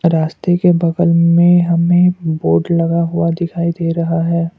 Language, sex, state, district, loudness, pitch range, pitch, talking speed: Hindi, male, Assam, Kamrup Metropolitan, -14 LUFS, 165-175 Hz, 170 Hz, 155 wpm